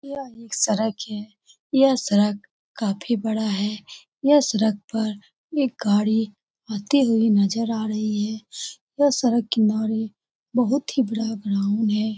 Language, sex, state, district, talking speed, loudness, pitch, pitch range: Hindi, female, Bihar, Saran, 140 wpm, -22 LUFS, 220 Hz, 210-240 Hz